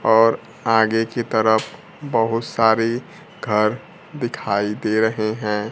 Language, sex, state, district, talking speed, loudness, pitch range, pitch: Hindi, male, Bihar, Kaimur, 115 wpm, -20 LUFS, 110-115 Hz, 110 Hz